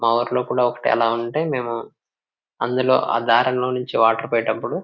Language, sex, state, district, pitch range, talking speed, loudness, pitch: Telugu, male, Telangana, Nalgonda, 115-125 Hz, 185 wpm, -20 LUFS, 120 Hz